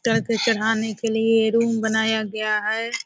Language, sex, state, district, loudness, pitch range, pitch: Hindi, female, Bihar, Purnia, -21 LUFS, 220-225 Hz, 225 Hz